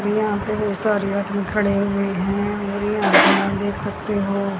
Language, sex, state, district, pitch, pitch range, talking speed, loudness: Hindi, female, Haryana, Charkhi Dadri, 200 Hz, 200-210 Hz, 130 wpm, -20 LUFS